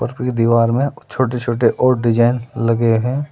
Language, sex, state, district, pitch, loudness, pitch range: Hindi, male, Uttar Pradesh, Saharanpur, 120 Hz, -17 LUFS, 115-130 Hz